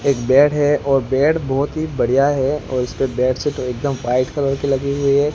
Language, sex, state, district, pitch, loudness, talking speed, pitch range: Hindi, male, Gujarat, Gandhinagar, 140 Hz, -18 LUFS, 225 wpm, 130-145 Hz